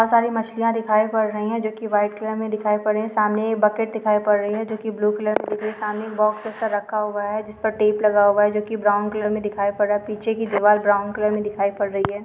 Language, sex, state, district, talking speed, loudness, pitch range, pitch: Hindi, female, Chhattisgarh, Jashpur, 290 wpm, -21 LUFS, 210-220 Hz, 215 Hz